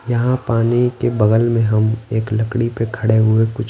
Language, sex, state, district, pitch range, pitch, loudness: Hindi, male, Bihar, West Champaran, 110-120 Hz, 115 Hz, -17 LUFS